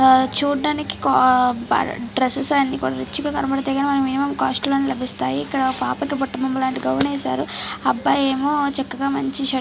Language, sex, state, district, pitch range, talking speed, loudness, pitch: Telugu, female, Andhra Pradesh, Chittoor, 250-275 Hz, 170 wpm, -20 LUFS, 265 Hz